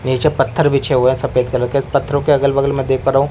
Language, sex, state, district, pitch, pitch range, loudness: Hindi, male, Delhi, New Delhi, 135 Hz, 130-140 Hz, -15 LUFS